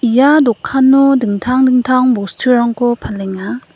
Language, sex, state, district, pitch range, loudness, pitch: Garo, female, Meghalaya, West Garo Hills, 235-260 Hz, -12 LUFS, 250 Hz